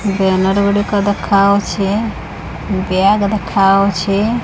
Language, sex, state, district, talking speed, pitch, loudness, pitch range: Odia, female, Odisha, Khordha, 80 wpm, 200 Hz, -14 LUFS, 195-205 Hz